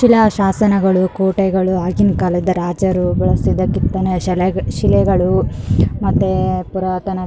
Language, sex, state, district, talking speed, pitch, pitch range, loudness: Kannada, female, Karnataka, Raichur, 100 wpm, 185 Hz, 180-195 Hz, -16 LUFS